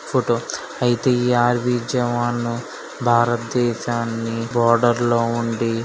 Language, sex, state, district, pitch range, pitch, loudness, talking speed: Telugu, male, Andhra Pradesh, Srikakulam, 115-120 Hz, 120 Hz, -20 LUFS, 60 wpm